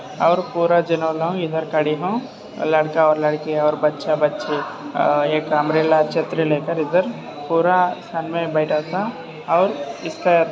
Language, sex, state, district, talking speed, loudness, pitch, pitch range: Hindi, male, Maharashtra, Dhule, 125 wpm, -20 LUFS, 160 Hz, 155-170 Hz